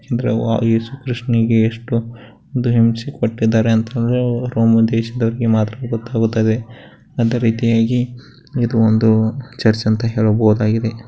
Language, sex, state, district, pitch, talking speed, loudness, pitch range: Kannada, male, Karnataka, Bellary, 115 Hz, 95 wpm, -17 LUFS, 110-120 Hz